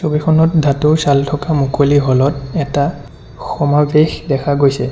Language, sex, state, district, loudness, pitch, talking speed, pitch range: Assamese, male, Assam, Sonitpur, -14 LUFS, 145 Hz, 120 wpm, 140-150 Hz